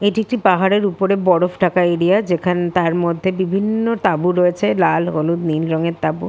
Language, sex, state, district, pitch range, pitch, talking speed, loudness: Bengali, female, West Bengal, Kolkata, 170-195 Hz, 180 Hz, 180 wpm, -17 LUFS